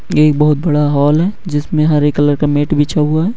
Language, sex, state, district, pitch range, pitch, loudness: Hindi, male, Bihar, Madhepura, 145-155 Hz, 150 Hz, -13 LUFS